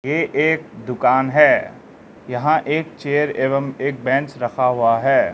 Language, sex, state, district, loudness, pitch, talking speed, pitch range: Hindi, male, Arunachal Pradesh, Lower Dibang Valley, -18 LUFS, 135 Hz, 145 wpm, 125-150 Hz